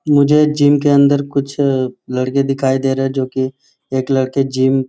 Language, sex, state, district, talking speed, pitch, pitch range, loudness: Hindi, male, Jharkhand, Sahebganj, 195 wpm, 135 Hz, 130-140 Hz, -15 LUFS